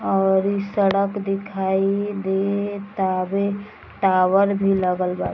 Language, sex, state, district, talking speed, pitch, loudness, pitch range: Bhojpuri, female, Bihar, East Champaran, 125 wpm, 195 Hz, -21 LUFS, 190-200 Hz